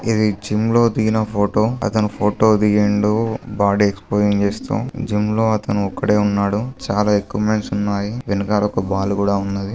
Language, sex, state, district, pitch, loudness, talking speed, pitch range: Telugu, male, Telangana, Karimnagar, 105 Hz, -18 LUFS, 145 wpm, 100-110 Hz